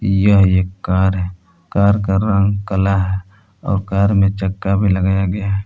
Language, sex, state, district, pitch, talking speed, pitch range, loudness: Hindi, male, Jharkhand, Palamu, 95 Hz, 180 wpm, 95-100 Hz, -16 LUFS